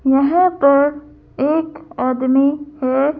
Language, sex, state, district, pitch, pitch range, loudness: Hindi, female, Madhya Pradesh, Bhopal, 285 Hz, 270-300 Hz, -16 LUFS